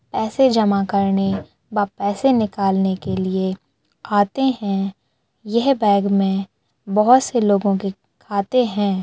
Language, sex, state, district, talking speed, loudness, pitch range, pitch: Hindi, female, Uttarakhand, Tehri Garhwal, 125 wpm, -19 LUFS, 195-220 Hz, 200 Hz